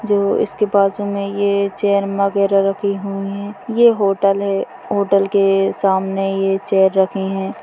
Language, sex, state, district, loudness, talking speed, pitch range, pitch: Hindi, female, Chhattisgarh, Bastar, -17 LUFS, 165 wpm, 195-200 Hz, 200 Hz